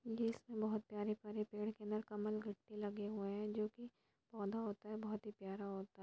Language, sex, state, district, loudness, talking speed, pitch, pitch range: Hindi, female, Jharkhand, Sahebganj, -45 LUFS, 190 wpm, 210 Hz, 205-215 Hz